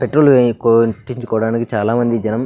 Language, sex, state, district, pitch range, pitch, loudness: Telugu, male, Andhra Pradesh, Anantapur, 115-125 Hz, 115 Hz, -15 LUFS